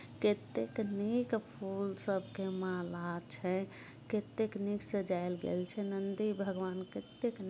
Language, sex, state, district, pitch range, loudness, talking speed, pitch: Hindi, female, Bihar, Muzaffarpur, 185-210 Hz, -38 LUFS, 120 wpm, 195 Hz